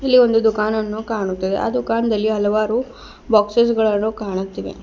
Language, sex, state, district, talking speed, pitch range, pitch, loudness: Kannada, female, Karnataka, Bidar, 110 wpm, 210-230 Hz, 220 Hz, -19 LUFS